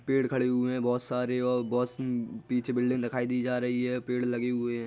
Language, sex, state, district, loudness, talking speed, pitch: Hindi, male, Bihar, Jahanabad, -29 LUFS, 245 wpm, 125 Hz